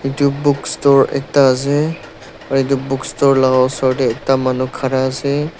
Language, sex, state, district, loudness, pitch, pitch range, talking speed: Nagamese, male, Nagaland, Dimapur, -15 LUFS, 135 Hz, 130-140 Hz, 170 wpm